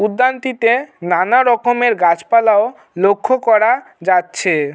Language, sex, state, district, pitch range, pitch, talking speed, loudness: Bengali, male, West Bengal, Jalpaiguri, 180-245 Hz, 220 Hz, 100 wpm, -14 LUFS